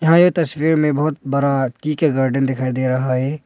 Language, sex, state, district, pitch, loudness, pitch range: Hindi, male, Arunachal Pradesh, Longding, 140 Hz, -18 LUFS, 130-155 Hz